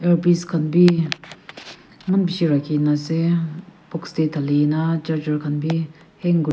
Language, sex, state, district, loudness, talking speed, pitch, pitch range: Nagamese, female, Nagaland, Kohima, -20 LUFS, 110 wpm, 160 Hz, 155-175 Hz